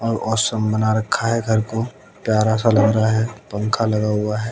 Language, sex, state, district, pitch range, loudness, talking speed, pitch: Hindi, male, Haryana, Jhajjar, 110-115 Hz, -19 LUFS, 200 wpm, 110 Hz